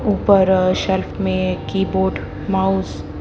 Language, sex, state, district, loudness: Hindi, female, Haryana, Jhajjar, -18 LUFS